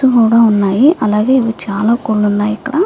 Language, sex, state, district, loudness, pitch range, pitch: Telugu, female, Andhra Pradesh, Visakhapatnam, -12 LUFS, 210-260 Hz, 225 Hz